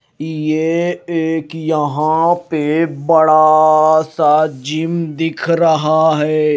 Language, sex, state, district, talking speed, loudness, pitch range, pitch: Hindi, male, Himachal Pradesh, Shimla, 90 wpm, -14 LUFS, 155-165 Hz, 155 Hz